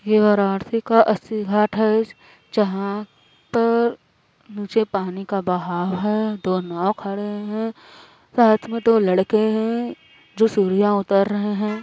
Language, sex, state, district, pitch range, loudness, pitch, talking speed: Hindi, female, Uttar Pradesh, Varanasi, 195-220 Hz, -20 LUFS, 210 Hz, 135 wpm